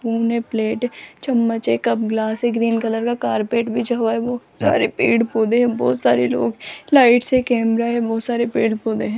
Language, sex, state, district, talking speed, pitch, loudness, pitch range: Hindi, female, Rajasthan, Jaipur, 210 wpm, 230 Hz, -19 LUFS, 220-240 Hz